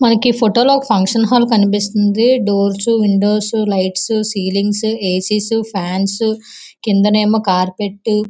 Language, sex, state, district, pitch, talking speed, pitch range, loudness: Telugu, female, Andhra Pradesh, Visakhapatnam, 210 Hz, 125 wpm, 200-225 Hz, -15 LUFS